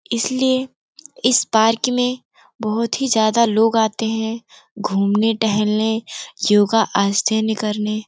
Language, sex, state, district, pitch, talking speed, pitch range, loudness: Hindi, female, Uttar Pradesh, Gorakhpur, 225 Hz, 120 wpm, 215-235 Hz, -18 LUFS